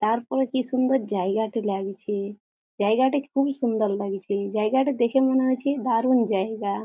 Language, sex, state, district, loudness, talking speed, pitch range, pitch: Bengali, female, West Bengal, Jhargram, -24 LUFS, 130 wpm, 205-260 Hz, 225 Hz